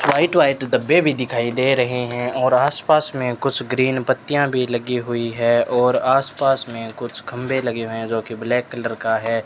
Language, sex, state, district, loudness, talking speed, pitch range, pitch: Hindi, male, Rajasthan, Bikaner, -19 LUFS, 215 wpm, 120-130 Hz, 125 Hz